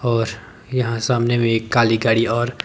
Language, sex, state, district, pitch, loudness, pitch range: Hindi, male, Himachal Pradesh, Shimla, 115 Hz, -19 LUFS, 115-120 Hz